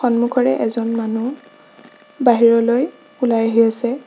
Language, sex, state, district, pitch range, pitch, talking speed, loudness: Assamese, female, Assam, Sonitpur, 230-250 Hz, 235 Hz, 105 wpm, -17 LUFS